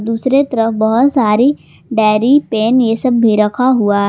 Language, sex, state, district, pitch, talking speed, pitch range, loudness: Hindi, female, Jharkhand, Garhwa, 230 Hz, 175 wpm, 220-260 Hz, -13 LUFS